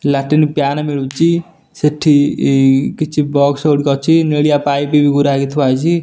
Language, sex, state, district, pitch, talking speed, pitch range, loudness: Odia, male, Odisha, Nuapada, 145 Hz, 160 wpm, 140-155 Hz, -13 LUFS